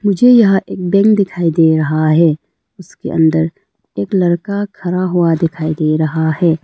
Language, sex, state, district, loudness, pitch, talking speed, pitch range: Hindi, female, Arunachal Pradesh, Lower Dibang Valley, -14 LUFS, 165 Hz, 160 wpm, 160-190 Hz